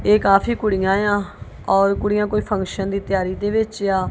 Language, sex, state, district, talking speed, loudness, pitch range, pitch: Punjabi, female, Punjab, Kapurthala, 190 wpm, -19 LUFS, 195-210 Hz, 200 Hz